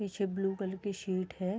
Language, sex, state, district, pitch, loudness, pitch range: Hindi, female, Bihar, Sitamarhi, 195 Hz, -35 LUFS, 185-200 Hz